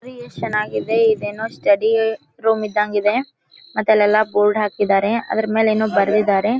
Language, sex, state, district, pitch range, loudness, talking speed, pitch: Kannada, female, Karnataka, Dharwad, 210-225 Hz, -18 LUFS, 145 wpm, 215 Hz